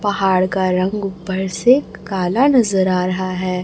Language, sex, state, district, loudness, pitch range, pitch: Hindi, female, Chhattisgarh, Raipur, -17 LUFS, 185-200 Hz, 190 Hz